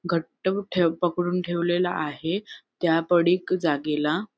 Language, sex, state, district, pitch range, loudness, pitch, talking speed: Marathi, female, Maharashtra, Sindhudurg, 165-180 Hz, -25 LUFS, 175 Hz, 110 wpm